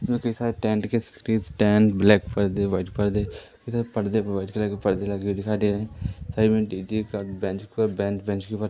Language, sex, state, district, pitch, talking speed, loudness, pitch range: Hindi, male, Madhya Pradesh, Katni, 105 Hz, 225 wpm, -25 LUFS, 100-110 Hz